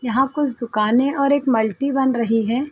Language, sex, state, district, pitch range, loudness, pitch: Hindi, female, Uttar Pradesh, Varanasi, 230-275 Hz, -19 LUFS, 260 Hz